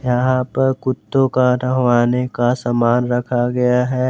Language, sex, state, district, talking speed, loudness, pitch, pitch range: Hindi, male, Jharkhand, Garhwa, 145 wpm, -17 LUFS, 125 Hz, 120-130 Hz